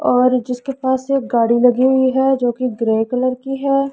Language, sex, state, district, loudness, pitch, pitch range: Hindi, female, Punjab, Pathankot, -17 LUFS, 255 Hz, 245-265 Hz